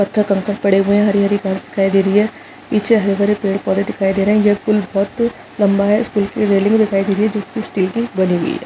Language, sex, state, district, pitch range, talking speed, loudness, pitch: Hindi, female, Chhattisgarh, Bastar, 195-210 Hz, 295 wpm, -16 LUFS, 200 Hz